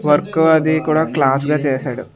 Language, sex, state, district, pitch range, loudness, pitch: Telugu, male, Andhra Pradesh, Sri Satya Sai, 135-160 Hz, -16 LUFS, 150 Hz